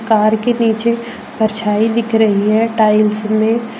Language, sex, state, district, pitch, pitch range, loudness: Hindi, female, Jharkhand, Deoghar, 220 Hz, 215-230 Hz, -14 LUFS